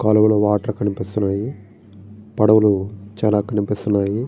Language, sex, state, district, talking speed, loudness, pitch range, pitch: Telugu, male, Andhra Pradesh, Srikakulam, 85 wpm, -18 LUFS, 100-105 Hz, 105 Hz